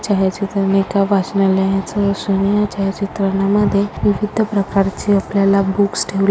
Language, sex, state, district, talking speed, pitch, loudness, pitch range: Marathi, female, Maharashtra, Sindhudurg, 135 wpm, 200 Hz, -16 LUFS, 195-200 Hz